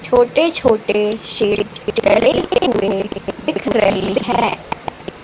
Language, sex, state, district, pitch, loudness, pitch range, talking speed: Hindi, female, Madhya Pradesh, Katni, 215 Hz, -17 LUFS, 200-240 Hz, 70 wpm